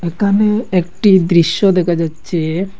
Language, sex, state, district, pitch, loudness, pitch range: Bengali, male, Assam, Hailakandi, 180 Hz, -14 LUFS, 170-200 Hz